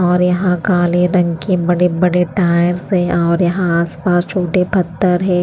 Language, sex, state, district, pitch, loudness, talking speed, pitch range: Hindi, female, Himachal Pradesh, Shimla, 180 Hz, -15 LUFS, 155 wpm, 175-180 Hz